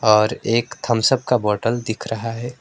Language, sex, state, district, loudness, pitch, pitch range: Hindi, male, West Bengal, Alipurduar, -20 LUFS, 115 Hz, 110-120 Hz